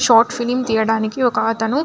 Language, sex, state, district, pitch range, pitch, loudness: Telugu, female, Andhra Pradesh, Anantapur, 220-245 Hz, 225 Hz, -17 LUFS